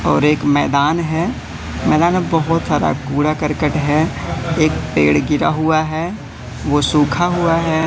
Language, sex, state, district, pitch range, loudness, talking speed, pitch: Hindi, male, Madhya Pradesh, Katni, 140-165 Hz, -16 LUFS, 155 wpm, 150 Hz